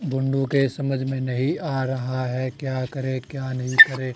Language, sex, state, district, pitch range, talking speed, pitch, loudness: Hindi, male, Haryana, Charkhi Dadri, 130-135 Hz, 175 wpm, 130 Hz, -22 LUFS